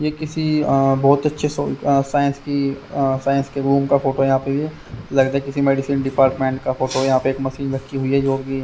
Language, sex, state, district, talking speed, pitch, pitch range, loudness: Hindi, male, Haryana, Rohtak, 210 wpm, 135 Hz, 135-140 Hz, -19 LUFS